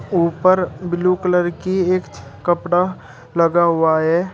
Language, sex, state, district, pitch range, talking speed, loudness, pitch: Hindi, male, Uttar Pradesh, Shamli, 170-180 Hz, 125 wpm, -18 LUFS, 175 Hz